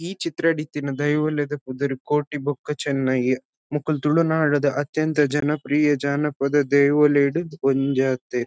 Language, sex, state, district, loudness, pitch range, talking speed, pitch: Tulu, male, Karnataka, Dakshina Kannada, -22 LUFS, 140-150 Hz, 115 wpm, 145 Hz